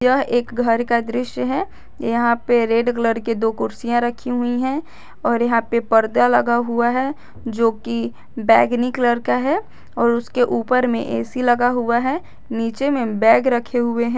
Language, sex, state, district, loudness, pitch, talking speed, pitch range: Hindi, female, Jharkhand, Garhwa, -19 LUFS, 240 Hz, 180 wpm, 230-250 Hz